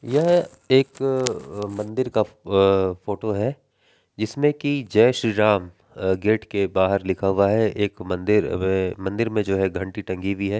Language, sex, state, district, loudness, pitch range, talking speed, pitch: Hindi, male, Bihar, Gaya, -22 LUFS, 95-115 Hz, 170 wpm, 105 Hz